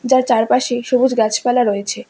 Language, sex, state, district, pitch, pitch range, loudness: Bengali, female, West Bengal, Alipurduar, 245 Hz, 225-255 Hz, -16 LUFS